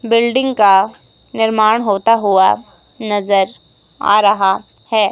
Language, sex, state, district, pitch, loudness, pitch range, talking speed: Hindi, female, Himachal Pradesh, Shimla, 210 Hz, -14 LUFS, 200-225 Hz, 105 wpm